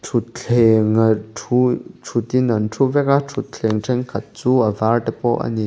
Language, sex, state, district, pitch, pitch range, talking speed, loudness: Mizo, male, Mizoram, Aizawl, 120 Hz, 110-125 Hz, 180 wpm, -18 LUFS